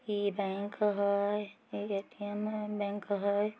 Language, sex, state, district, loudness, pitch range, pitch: Magahi, female, Bihar, Samastipur, -34 LUFS, 200-210 Hz, 205 Hz